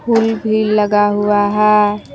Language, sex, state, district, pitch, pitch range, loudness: Hindi, female, Jharkhand, Palamu, 210 Hz, 205-215 Hz, -14 LUFS